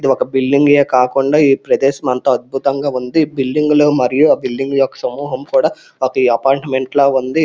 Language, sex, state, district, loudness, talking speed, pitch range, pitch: Telugu, male, Andhra Pradesh, Srikakulam, -14 LUFS, 175 wpm, 130-145 Hz, 135 Hz